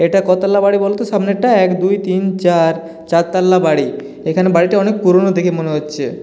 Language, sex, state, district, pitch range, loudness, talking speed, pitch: Bengali, male, West Bengal, Jalpaiguri, 165-195 Hz, -14 LUFS, 175 wpm, 185 Hz